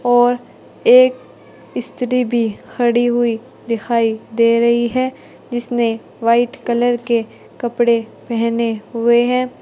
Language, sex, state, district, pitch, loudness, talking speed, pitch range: Hindi, female, Uttar Pradesh, Saharanpur, 240 Hz, -17 LUFS, 110 wpm, 230-245 Hz